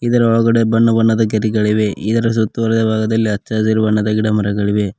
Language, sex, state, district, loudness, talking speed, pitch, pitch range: Kannada, male, Karnataka, Koppal, -15 LUFS, 145 wpm, 110 Hz, 105-115 Hz